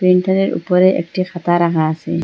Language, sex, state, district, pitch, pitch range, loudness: Bengali, female, Assam, Hailakandi, 180 Hz, 170-185 Hz, -16 LUFS